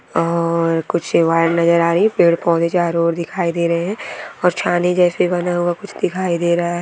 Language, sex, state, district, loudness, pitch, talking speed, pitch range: Hindi, female, Goa, North and South Goa, -17 LUFS, 170 Hz, 175 wpm, 170-175 Hz